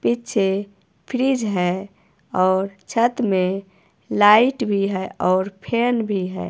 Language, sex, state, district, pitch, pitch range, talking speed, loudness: Hindi, female, Himachal Pradesh, Shimla, 195 Hz, 185-220 Hz, 120 wpm, -20 LUFS